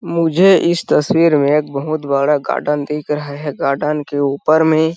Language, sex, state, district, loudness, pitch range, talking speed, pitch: Hindi, male, Chhattisgarh, Sarguja, -15 LUFS, 145-160 Hz, 195 wpm, 150 Hz